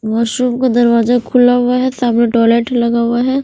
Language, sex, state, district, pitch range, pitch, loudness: Hindi, female, Punjab, Fazilka, 235-250 Hz, 240 Hz, -13 LUFS